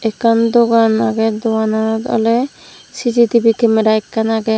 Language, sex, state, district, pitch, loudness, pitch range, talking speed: Chakma, female, Tripura, Dhalai, 225 Hz, -14 LUFS, 220-230 Hz, 120 wpm